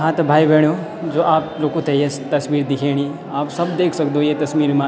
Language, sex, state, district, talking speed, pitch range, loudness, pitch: Garhwali, male, Uttarakhand, Tehri Garhwal, 210 wpm, 145-160 Hz, -18 LUFS, 150 Hz